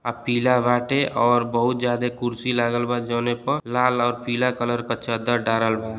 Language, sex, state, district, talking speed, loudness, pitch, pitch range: Bhojpuri, male, Uttar Pradesh, Deoria, 180 wpm, -22 LUFS, 120 Hz, 120-125 Hz